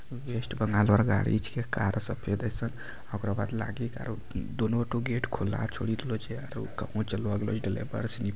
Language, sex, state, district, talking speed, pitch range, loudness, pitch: Maithili, male, Bihar, Bhagalpur, 150 wpm, 105-120 Hz, -31 LUFS, 110 Hz